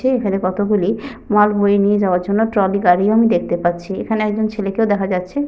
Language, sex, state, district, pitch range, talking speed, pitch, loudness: Bengali, female, Jharkhand, Sahebganj, 195-220 Hz, 195 wpm, 205 Hz, -17 LUFS